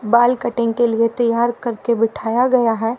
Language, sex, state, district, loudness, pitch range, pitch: Hindi, female, Haryana, Rohtak, -17 LUFS, 230-240 Hz, 235 Hz